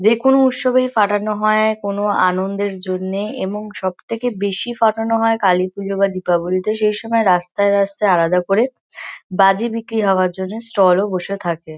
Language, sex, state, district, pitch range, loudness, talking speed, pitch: Bengali, female, West Bengal, Kolkata, 185-220 Hz, -17 LUFS, 145 wpm, 200 Hz